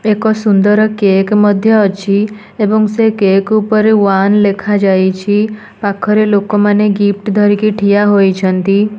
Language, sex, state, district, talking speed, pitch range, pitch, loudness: Odia, female, Odisha, Nuapada, 120 wpm, 200-215 Hz, 205 Hz, -11 LUFS